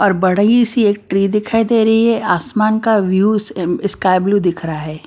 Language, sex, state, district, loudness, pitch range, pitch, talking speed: Hindi, female, Maharashtra, Washim, -15 LUFS, 185-220 Hz, 205 Hz, 200 wpm